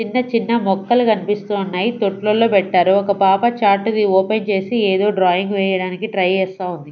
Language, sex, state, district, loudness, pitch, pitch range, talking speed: Telugu, female, Andhra Pradesh, Sri Satya Sai, -17 LUFS, 200 Hz, 190-220 Hz, 165 wpm